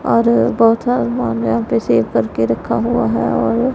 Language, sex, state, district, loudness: Hindi, female, Punjab, Pathankot, -16 LUFS